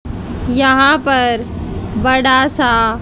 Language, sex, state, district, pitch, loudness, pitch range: Hindi, female, Haryana, Jhajjar, 260 Hz, -12 LUFS, 245-270 Hz